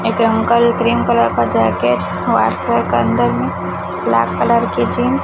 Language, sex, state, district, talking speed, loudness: Hindi, male, Chhattisgarh, Raipur, 185 wpm, -15 LUFS